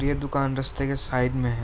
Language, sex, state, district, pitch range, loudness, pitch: Hindi, male, West Bengal, Alipurduar, 130-140 Hz, -18 LUFS, 135 Hz